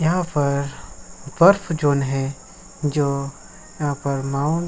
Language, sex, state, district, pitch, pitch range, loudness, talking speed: Hindi, male, Jharkhand, Sahebganj, 140 Hz, 140-155 Hz, -21 LUFS, 130 wpm